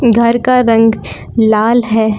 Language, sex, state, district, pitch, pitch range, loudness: Hindi, female, Jharkhand, Palamu, 230 Hz, 220-235 Hz, -11 LUFS